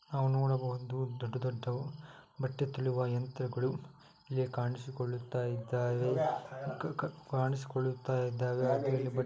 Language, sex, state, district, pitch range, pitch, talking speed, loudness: Kannada, male, Karnataka, Dakshina Kannada, 125-135 Hz, 130 Hz, 110 wpm, -35 LUFS